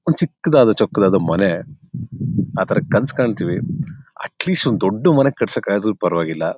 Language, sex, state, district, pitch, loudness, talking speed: Kannada, male, Karnataka, Bellary, 115 Hz, -18 LUFS, 125 wpm